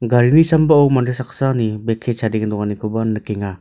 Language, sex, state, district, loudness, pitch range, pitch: Garo, male, Meghalaya, North Garo Hills, -17 LUFS, 110-130 Hz, 115 Hz